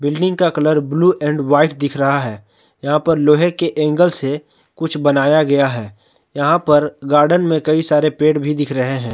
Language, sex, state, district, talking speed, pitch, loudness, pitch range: Hindi, male, Jharkhand, Palamu, 195 wpm, 150 Hz, -15 LUFS, 140-155 Hz